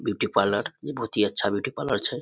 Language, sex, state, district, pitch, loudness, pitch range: Maithili, male, Bihar, Samastipur, 105 Hz, -26 LUFS, 100-135 Hz